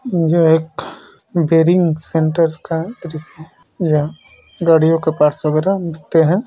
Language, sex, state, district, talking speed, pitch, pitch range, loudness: Hindi, male, Bihar, Purnia, 140 wpm, 165 Hz, 155-170 Hz, -16 LUFS